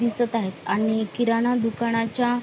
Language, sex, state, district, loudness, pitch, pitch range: Marathi, female, Maharashtra, Sindhudurg, -24 LUFS, 230 Hz, 225-240 Hz